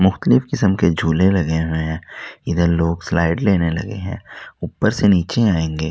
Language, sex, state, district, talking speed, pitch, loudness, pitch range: Hindi, male, Delhi, New Delhi, 170 wpm, 85 Hz, -18 LUFS, 80-100 Hz